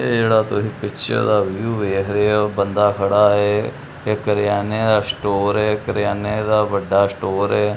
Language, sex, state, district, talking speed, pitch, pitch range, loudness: Punjabi, male, Punjab, Kapurthala, 170 wpm, 105 Hz, 100-105 Hz, -18 LUFS